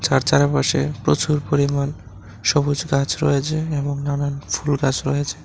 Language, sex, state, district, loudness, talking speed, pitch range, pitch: Bengali, male, Tripura, West Tripura, -20 LUFS, 130 wpm, 135-145 Hz, 140 Hz